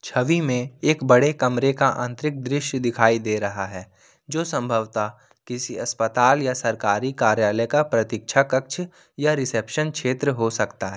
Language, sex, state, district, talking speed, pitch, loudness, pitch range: Hindi, male, Jharkhand, Ranchi, 155 wpm, 125 Hz, -22 LUFS, 115-140 Hz